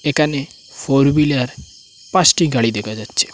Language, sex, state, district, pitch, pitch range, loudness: Bengali, male, Assam, Hailakandi, 140 Hz, 115-150 Hz, -16 LUFS